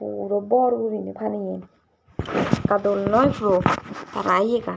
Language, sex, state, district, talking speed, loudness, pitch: Chakma, female, Tripura, Dhalai, 115 wpm, -22 LUFS, 185 Hz